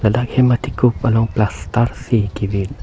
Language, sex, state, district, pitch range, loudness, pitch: Karbi, male, Assam, Karbi Anglong, 105-125 Hz, -17 LUFS, 115 Hz